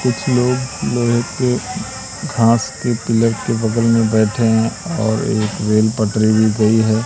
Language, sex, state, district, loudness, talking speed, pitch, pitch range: Hindi, male, Madhya Pradesh, Katni, -16 LUFS, 145 wpm, 115 Hz, 110-120 Hz